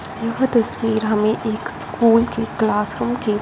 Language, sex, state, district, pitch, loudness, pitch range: Hindi, female, Punjab, Fazilka, 225 Hz, -17 LUFS, 215-235 Hz